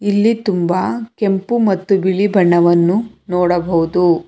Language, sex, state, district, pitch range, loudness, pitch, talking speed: Kannada, female, Karnataka, Bangalore, 175-205 Hz, -15 LUFS, 190 Hz, 100 wpm